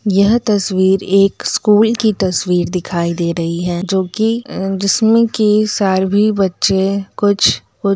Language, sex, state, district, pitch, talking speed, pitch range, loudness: Hindi, female, Bihar, Muzaffarpur, 195 Hz, 150 wpm, 185-210 Hz, -14 LUFS